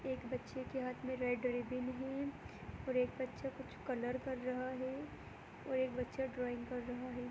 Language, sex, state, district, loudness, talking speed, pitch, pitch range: Hindi, female, Bihar, Muzaffarpur, -42 LUFS, 190 wpm, 255 Hz, 250-260 Hz